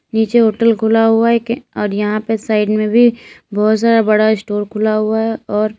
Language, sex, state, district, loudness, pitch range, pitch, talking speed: Hindi, female, Uttar Pradesh, Lalitpur, -14 LUFS, 215-230 Hz, 220 Hz, 205 wpm